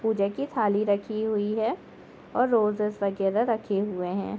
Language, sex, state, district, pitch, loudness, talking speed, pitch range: Hindi, female, Jharkhand, Jamtara, 210 Hz, -26 LUFS, 165 wpm, 200-220 Hz